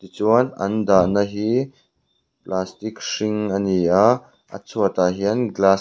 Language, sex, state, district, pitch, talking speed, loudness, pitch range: Mizo, male, Mizoram, Aizawl, 100 Hz, 145 wpm, -20 LUFS, 95-110 Hz